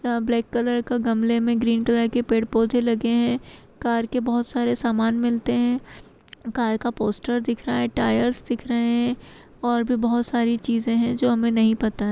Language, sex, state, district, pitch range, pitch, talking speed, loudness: Kumaoni, female, Uttarakhand, Tehri Garhwal, 230-240 Hz, 235 Hz, 205 wpm, -22 LUFS